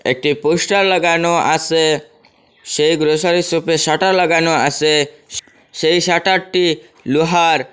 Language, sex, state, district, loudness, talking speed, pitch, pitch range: Bengali, male, Assam, Hailakandi, -15 LUFS, 110 wpm, 160 Hz, 155-175 Hz